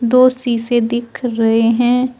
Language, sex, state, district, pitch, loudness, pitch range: Hindi, female, Uttar Pradesh, Shamli, 240 Hz, -15 LUFS, 230-250 Hz